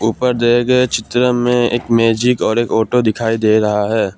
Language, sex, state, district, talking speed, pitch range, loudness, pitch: Hindi, male, Assam, Kamrup Metropolitan, 200 wpm, 110-125 Hz, -14 LUFS, 120 Hz